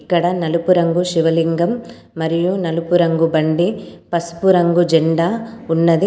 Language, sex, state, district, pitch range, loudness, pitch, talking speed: Telugu, female, Telangana, Komaram Bheem, 165-180 Hz, -17 LUFS, 170 Hz, 120 wpm